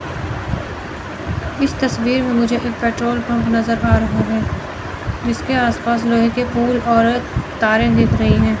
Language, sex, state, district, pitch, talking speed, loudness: Hindi, female, Chandigarh, Chandigarh, 230 Hz, 155 wpm, -17 LUFS